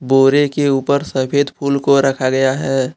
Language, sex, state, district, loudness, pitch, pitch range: Hindi, male, Jharkhand, Deoghar, -15 LUFS, 135 Hz, 135-140 Hz